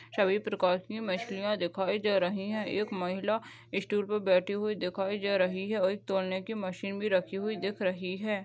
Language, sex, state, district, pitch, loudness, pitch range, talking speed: Hindi, female, Goa, North and South Goa, 195 Hz, -31 LUFS, 185-210 Hz, 205 wpm